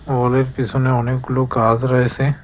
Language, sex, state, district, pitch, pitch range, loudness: Bengali, male, West Bengal, Cooch Behar, 130 Hz, 125-130 Hz, -18 LUFS